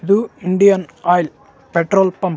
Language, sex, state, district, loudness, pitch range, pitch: Kannada, male, Karnataka, Raichur, -16 LUFS, 175-200 Hz, 190 Hz